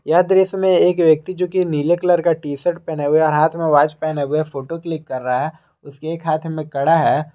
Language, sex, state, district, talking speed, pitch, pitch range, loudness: Hindi, male, Jharkhand, Garhwa, 235 wpm, 160 Hz, 150-170 Hz, -18 LUFS